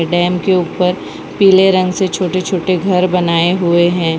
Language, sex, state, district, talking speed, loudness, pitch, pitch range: Hindi, female, Gujarat, Valsad, 170 wpm, -13 LUFS, 180 Hz, 175-185 Hz